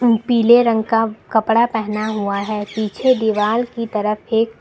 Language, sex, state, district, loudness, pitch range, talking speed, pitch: Hindi, female, Uttar Pradesh, Lucknow, -17 LUFS, 215-230 Hz, 155 wpm, 220 Hz